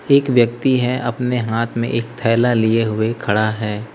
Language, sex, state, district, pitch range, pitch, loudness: Hindi, male, Uttar Pradesh, Lalitpur, 110-125 Hz, 115 Hz, -18 LUFS